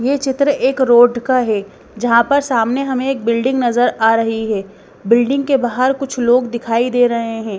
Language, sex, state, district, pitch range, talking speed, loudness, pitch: Hindi, female, Bihar, Patna, 230-260 Hz, 200 wpm, -15 LUFS, 245 Hz